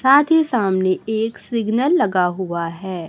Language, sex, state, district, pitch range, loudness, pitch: Hindi, male, Chhattisgarh, Raipur, 185-260 Hz, -19 LUFS, 220 Hz